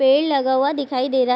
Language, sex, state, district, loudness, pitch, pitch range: Hindi, female, Bihar, Vaishali, -19 LUFS, 270 Hz, 260-280 Hz